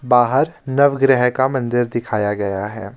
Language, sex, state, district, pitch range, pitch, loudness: Hindi, male, Himachal Pradesh, Shimla, 110-130 Hz, 120 Hz, -17 LUFS